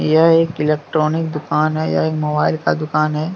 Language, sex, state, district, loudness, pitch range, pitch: Hindi, male, Jharkhand, Deoghar, -17 LUFS, 140-155 Hz, 155 Hz